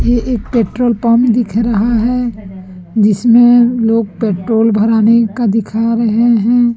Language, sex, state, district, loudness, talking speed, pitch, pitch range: Hindi, female, Chhattisgarh, Raipur, -12 LUFS, 135 wpm, 230 Hz, 220-240 Hz